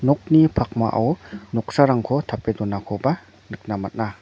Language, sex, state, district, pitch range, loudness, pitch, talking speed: Garo, male, Meghalaya, North Garo Hills, 105-140 Hz, -21 LUFS, 115 Hz, 100 wpm